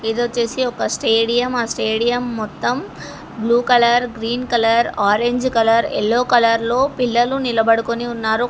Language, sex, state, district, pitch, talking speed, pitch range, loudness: Telugu, female, Telangana, Hyderabad, 235 Hz, 140 wpm, 225-245 Hz, -17 LUFS